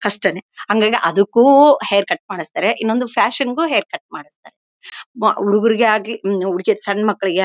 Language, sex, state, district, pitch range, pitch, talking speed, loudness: Kannada, female, Karnataka, Bellary, 200-240 Hz, 220 Hz, 145 wpm, -16 LUFS